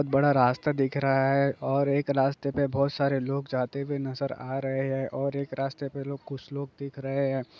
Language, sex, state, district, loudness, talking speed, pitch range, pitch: Hindi, male, Bihar, Gopalganj, -28 LUFS, 220 wpm, 135-140 Hz, 140 Hz